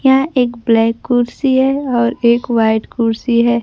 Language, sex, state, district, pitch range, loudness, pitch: Hindi, female, Bihar, Kaimur, 230-260 Hz, -14 LUFS, 240 Hz